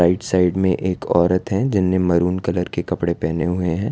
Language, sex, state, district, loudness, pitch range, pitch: Hindi, male, Gujarat, Valsad, -19 LUFS, 85-95 Hz, 90 Hz